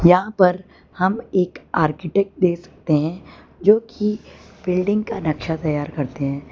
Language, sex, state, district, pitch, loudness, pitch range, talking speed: Hindi, female, Gujarat, Valsad, 180 Hz, -21 LUFS, 155-195 Hz, 145 wpm